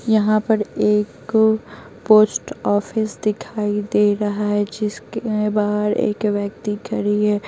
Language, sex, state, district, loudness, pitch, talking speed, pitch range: Hindi, female, Bihar, Patna, -19 LUFS, 210 Hz, 120 wpm, 205-215 Hz